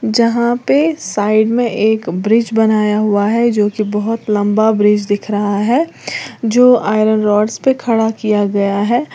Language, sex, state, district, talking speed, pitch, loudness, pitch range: Hindi, female, Uttar Pradesh, Lalitpur, 165 wpm, 220 Hz, -14 LUFS, 210-235 Hz